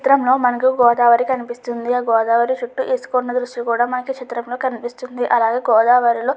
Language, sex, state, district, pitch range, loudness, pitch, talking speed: Telugu, female, Andhra Pradesh, Chittoor, 235-255 Hz, -17 LUFS, 245 Hz, 170 wpm